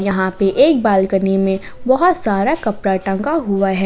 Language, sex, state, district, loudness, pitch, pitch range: Hindi, female, Jharkhand, Ranchi, -16 LUFS, 195 Hz, 195-220 Hz